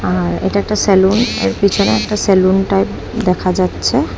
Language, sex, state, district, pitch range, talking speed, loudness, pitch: Bengali, female, Assam, Hailakandi, 185-200 Hz, 160 wpm, -14 LUFS, 195 Hz